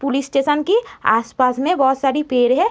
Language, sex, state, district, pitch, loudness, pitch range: Hindi, female, Uttar Pradesh, Muzaffarnagar, 270 Hz, -17 LUFS, 255-295 Hz